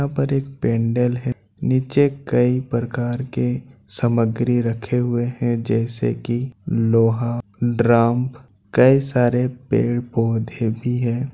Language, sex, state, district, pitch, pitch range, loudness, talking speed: Hindi, male, Jharkhand, Ranchi, 120 Hz, 115-125 Hz, -20 LUFS, 115 wpm